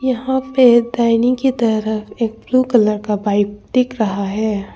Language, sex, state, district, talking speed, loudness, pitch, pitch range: Hindi, female, Arunachal Pradesh, Longding, 165 wpm, -16 LUFS, 230 Hz, 210-250 Hz